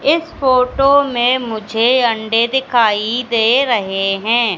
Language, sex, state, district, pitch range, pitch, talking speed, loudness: Hindi, female, Madhya Pradesh, Katni, 225-260 Hz, 240 Hz, 120 wpm, -14 LUFS